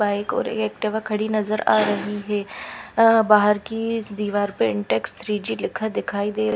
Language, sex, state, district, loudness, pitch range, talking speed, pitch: Hindi, female, Punjab, Fazilka, -22 LUFS, 205-215 Hz, 210 wpm, 210 Hz